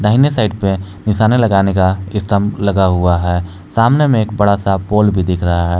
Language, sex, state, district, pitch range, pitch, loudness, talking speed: Hindi, male, Jharkhand, Palamu, 95-105 Hz, 100 Hz, -14 LUFS, 205 wpm